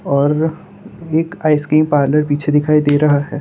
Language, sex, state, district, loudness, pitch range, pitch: Hindi, male, Gujarat, Valsad, -15 LUFS, 145-155 Hz, 150 Hz